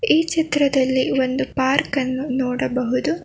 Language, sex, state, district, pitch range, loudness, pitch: Kannada, female, Karnataka, Bangalore, 260-295 Hz, -20 LUFS, 265 Hz